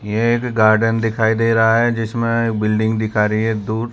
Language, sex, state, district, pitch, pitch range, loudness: Hindi, male, Gujarat, Valsad, 115 Hz, 110-115 Hz, -17 LUFS